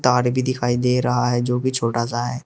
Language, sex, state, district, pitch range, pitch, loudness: Hindi, male, Uttar Pradesh, Shamli, 120-125 Hz, 125 Hz, -20 LUFS